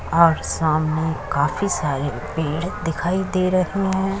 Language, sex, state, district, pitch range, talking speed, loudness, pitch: Hindi, female, Uttar Pradesh, Muzaffarnagar, 155-185 Hz, 130 wpm, -21 LUFS, 165 Hz